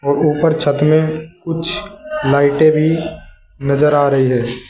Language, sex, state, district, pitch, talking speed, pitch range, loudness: Hindi, male, Uttar Pradesh, Saharanpur, 155 Hz, 140 wpm, 140-165 Hz, -15 LUFS